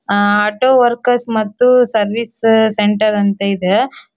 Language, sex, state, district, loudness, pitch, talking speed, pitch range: Kannada, female, Karnataka, Dharwad, -14 LUFS, 215 Hz, 115 wpm, 205-235 Hz